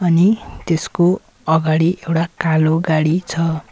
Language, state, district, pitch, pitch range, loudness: Nepali, West Bengal, Darjeeling, 165 Hz, 160-175 Hz, -17 LUFS